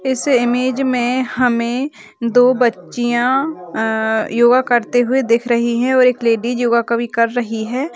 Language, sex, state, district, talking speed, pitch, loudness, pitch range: Hindi, female, Bihar, Kishanganj, 160 wpm, 245 Hz, -16 LUFS, 235-255 Hz